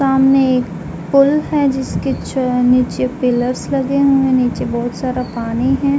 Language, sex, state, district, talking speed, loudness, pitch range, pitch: Hindi, female, Uttar Pradesh, Jalaun, 140 wpm, -16 LUFS, 245-270 Hz, 255 Hz